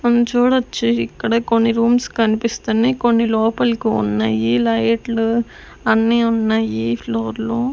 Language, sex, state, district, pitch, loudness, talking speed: Telugu, female, Andhra Pradesh, Sri Satya Sai, 225 Hz, -17 LUFS, 110 wpm